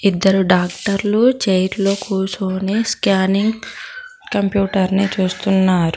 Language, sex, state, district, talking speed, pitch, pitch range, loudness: Telugu, female, Telangana, Mahabubabad, 70 wpm, 195 Hz, 190-205 Hz, -17 LUFS